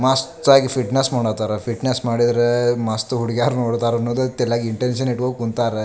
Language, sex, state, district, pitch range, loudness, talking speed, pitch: Kannada, male, Karnataka, Dharwad, 115-130 Hz, -19 LUFS, 135 wpm, 120 Hz